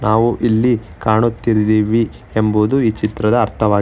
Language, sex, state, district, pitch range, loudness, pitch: Kannada, male, Karnataka, Bangalore, 105-115 Hz, -16 LUFS, 110 Hz